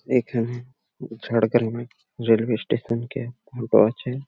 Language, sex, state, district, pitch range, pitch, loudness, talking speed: Bengali, male, West Bengal, Jhargram, 115-125 Hz, 120 Hz, -23 LUFS, 85 wpm